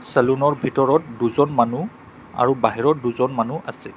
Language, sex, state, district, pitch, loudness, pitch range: Assamese, male, Assam, Kamrup Metropolitan, 125 Hz, -20 LUFS, 120-140 Hz